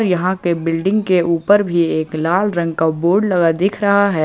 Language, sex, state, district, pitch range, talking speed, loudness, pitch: Hindi, male, Jharkhand, Ranchi, 165-200 Hz, 210 wpm, -16 LUFS, 180 Hz